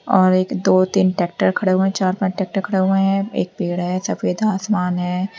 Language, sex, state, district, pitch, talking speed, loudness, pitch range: Hindi, female, Uttar Pradesh, Lalitpur, 190 Hz, 220 wpm, -19 LUFS, 185-195 Hz